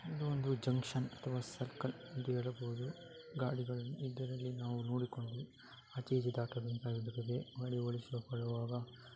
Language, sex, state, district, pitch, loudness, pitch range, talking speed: Kannada, male, Karnataka, Dakshina Kannada, 125 Hz, -41 LUFS, 120-130 Hz, 105 wpm